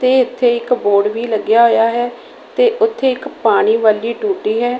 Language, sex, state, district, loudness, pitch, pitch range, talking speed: Punjabi, female, Punjab, Kapurthala, -15 LUFS, 240 Hz, 225-260 Hz, 190 wpm